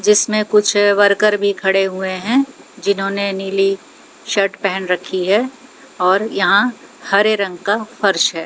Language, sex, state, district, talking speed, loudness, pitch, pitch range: Hindi, female, Haryana, Jhajjar, 140 wpm, -16 LUFS, 200 Hz, 195-210 Hz